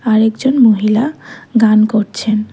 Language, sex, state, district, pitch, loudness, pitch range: Bengali, female, Tripura, West Tripura, 220 Hz, -13 LUFS, 215-230 Hz